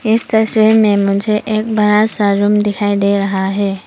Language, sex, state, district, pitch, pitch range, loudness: Hindi, female, Arunachal Pradesh, Papum Pare, 210 Hz, 200-215 Hz, -13 LUFS